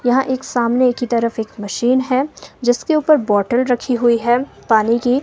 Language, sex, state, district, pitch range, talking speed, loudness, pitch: Hindi, female, Himachal Pradesh, Shimla, 235-255 Hz, 185 wpm, -17 LUFS, 245 Hz